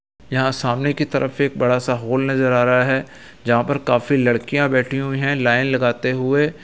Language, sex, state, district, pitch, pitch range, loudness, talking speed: Hindi, male, Uttar Pradesh, Etah, 130 Hz, 120-135 Hz, -19 LUFS, 200 wpm